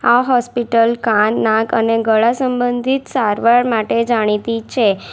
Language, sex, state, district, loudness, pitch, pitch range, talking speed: Gujarati, female, Gujarat, Valsad, -15 LUFS, 230 Hz, 220-245 Hz, 130 wpm